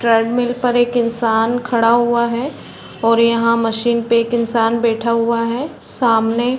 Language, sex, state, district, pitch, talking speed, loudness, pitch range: Hindi, female, Chhattisgarh, Raigarh, 235 Hz, 155 wpm, -16 LUFS, 230-240 Hz